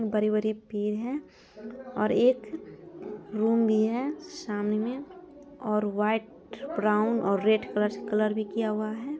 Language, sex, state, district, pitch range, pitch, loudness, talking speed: Hindi, female, Bihar, Araria, 210-250 Hz, 215 Hz, -28 LUFS, 145 wpm